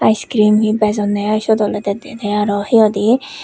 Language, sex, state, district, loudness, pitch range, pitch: Chakma, female, Tripura, West Tripura, -15 LUFS, 205-220 Hz, 215 Hz